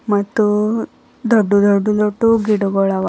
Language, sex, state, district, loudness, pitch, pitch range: Kannada, female, Karnataka, Bidar, -16 LUFS, 210 Hz, 200-220 Hz